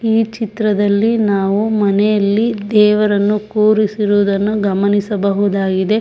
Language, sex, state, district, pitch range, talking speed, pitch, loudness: Kannada, female, Karnataka, Shimoga, 200-215 Hz, 70 wpm, 210 Hz, -14 LUFS